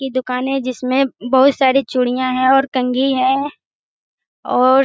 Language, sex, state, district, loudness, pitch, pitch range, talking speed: Hindi, female, Bihar, Jamui, -16 LUFS, 260 Hz, 255-270 Hz, 160 wpm